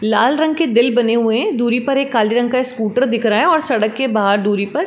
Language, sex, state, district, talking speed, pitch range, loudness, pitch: Hindi, female, Uttar Pradesh, Varanasi, 285 wpm, 220-265 Hz, -16 LUFS, 240 Hz